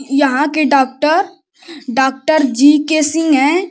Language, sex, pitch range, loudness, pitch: Hindi, male, 275-320 Hz, -13 LUFS, 295 Hz